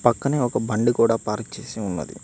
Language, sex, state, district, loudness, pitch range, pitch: Telugu, male, Telangana, Mahabubabad, -23 LUFS, 105-120 Hz, 115 Hz